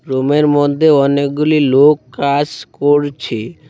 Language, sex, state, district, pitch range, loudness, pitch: Bengali, male, West Bengal, Cooch Behar, 140-150 Hz, -13 LUFS, 145 Hz